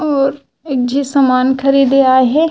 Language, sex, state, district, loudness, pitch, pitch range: Chhattisgarhi, female, Chhattisgarh, Raigarh, -13 LUFS, 275 Hz, 260-280 Hz